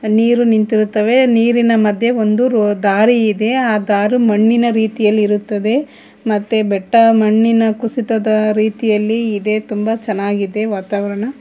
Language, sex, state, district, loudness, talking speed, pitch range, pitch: Kannada, female, Karnataka, Bangalore, -14 LUFS, 110 wpm, 210-230 Hz, 215 Hz